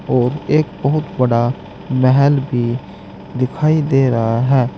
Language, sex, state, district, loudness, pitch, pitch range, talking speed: Hindi, male, Uttar Pradesh, Saharanpur, -16 LUFS, 130 Hz, 120-140 Hz, 125 wpm